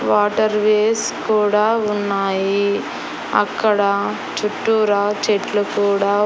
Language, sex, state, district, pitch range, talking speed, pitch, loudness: Telugu, female, Andhra Pradesh, Annamaya, 200-215 Hz, 75 wpm, 210 Hz, -18 LUFS